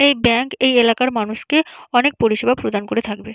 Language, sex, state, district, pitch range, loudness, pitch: Bengali, female, West Bengal, Jalpaiguri, 225-260 Hz, -17 LUFS, 240 Hz